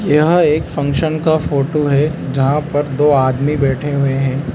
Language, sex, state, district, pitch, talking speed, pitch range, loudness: Hindi, male, Mizoram, Aizawl, 145 Hz, 170 wpm, 135-150 Hz, -15 LUFS